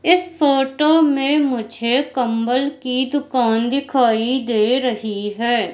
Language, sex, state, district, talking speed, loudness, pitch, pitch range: Hindi, female, Madhya Pradesh, Katni, 115 wpm, -18 LUFS, 255 Hz, 235-280 Hz